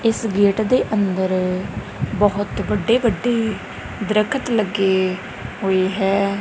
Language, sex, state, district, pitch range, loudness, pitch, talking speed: Punjabi, female, Punjab, Kapurthala, 190-225 Hz, -20 LUFS, 205 Hz, 105 wpm